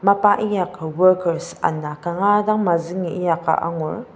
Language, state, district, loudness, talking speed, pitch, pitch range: Ao, Nagaland, Dimapur, -20 LUFS, 130 wpm, 175 Hz, 165-200 Hz